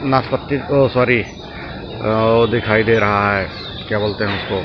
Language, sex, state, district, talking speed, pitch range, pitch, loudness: Hindi, male, Maharashtra, Mumbai Suburban, 180 wpm, 105-125 Hz, 110 Hz, -16 LUFS